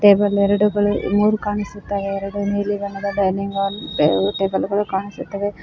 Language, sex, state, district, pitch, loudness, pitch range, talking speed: Kannada, female, Karnataka, Koppal, 200 Hz, -20 LUFS, 200-205 Hz, 140 wpm